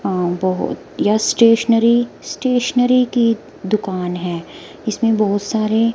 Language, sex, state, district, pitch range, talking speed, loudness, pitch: Hindi, female, Himachal Pradesh, Shimla, 190-235 Hz, 110 wpm, -17 LUFS, 220 Hz